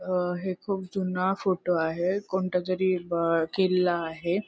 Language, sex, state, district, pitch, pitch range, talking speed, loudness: Marathi, female, Maharashtra, Sindhudurg, 180 Hz, 175-190 Hz, 120 wpm, -27 LUFS